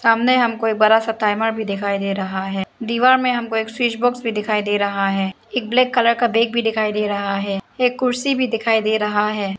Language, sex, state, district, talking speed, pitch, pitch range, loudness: Hindi, female, Arunachal Pradesh, Lower Dibang Valley, 250 wpm, 225 Hz, 205-240 Hz, -19 LUFS